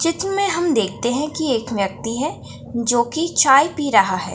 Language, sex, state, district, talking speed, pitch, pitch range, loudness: Hindi, female, Bihar, Gaya, 205 wpm, 270 Hz, 230-325 Hz, -19 LUFS